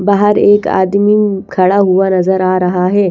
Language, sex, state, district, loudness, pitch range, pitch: Hindi, female, Haryana, Rohtak, -11 LUFS, 185-205 Hz, 190 Hz